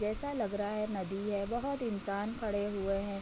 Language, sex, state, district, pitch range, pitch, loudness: Hindi, female, Uttar Pradesh, Budaun, 200-220 Hz, 205 Hz, -36 LUFS